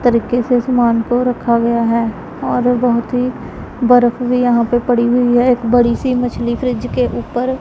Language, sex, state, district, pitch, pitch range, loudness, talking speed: Hindi, female, Punjab, Pathankot, 245 Hz, 235-250 Hz, -15 LUFS, 190 wpm